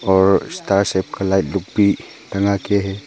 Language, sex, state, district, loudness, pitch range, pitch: Hindi, male, Arunachal Pradesh, Papum Pare, -18 LUFS, 95-100 Hz, 100 Hz